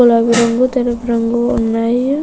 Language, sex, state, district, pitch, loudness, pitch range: Telugu, female, Andhra Pradesh, Chittoor, 235 Hz, -14 LUFS, 235-245 Hz